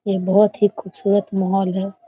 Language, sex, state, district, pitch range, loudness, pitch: Maithili, female, Bihar, Muzaffarpur, 190-205 Hz, -19 LUFS, 195 Hz